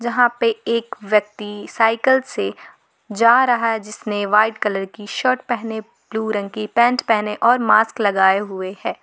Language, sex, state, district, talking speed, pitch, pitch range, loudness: Hindi, female, Jharkhand, Garhwa, 165 wpm, 220 Hz, 210-235 Hz, -18 LUFS